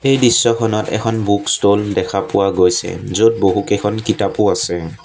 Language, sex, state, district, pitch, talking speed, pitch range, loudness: Assamese, male, Assam, Sonitpur, 105 Hz, 145 wpm, 100-115 Hz, -15 LUFS